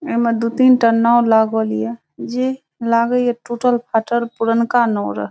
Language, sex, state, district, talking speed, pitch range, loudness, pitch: Hindi, female, Bihar, Saharsa, 160 wpm, 225-240 Hz, -17 LUFS, 235 Hz